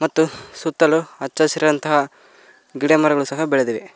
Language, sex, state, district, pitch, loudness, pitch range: Kannada, male, Karnataka, Koppal, 155 Hz, -19 LUFS, 140-160 Hz